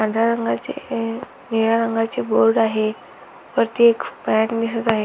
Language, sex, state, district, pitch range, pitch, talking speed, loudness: Marathi, female, Maharashtra, Aurangabad, 220-230 Hz, 225 Hz, 140 wpm, -20 LUFS